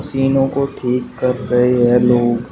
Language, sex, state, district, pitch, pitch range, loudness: Hindi, male, Uttar Pradesh, Shamli, 125 Hz, 120-135 Hz, -16 LUFS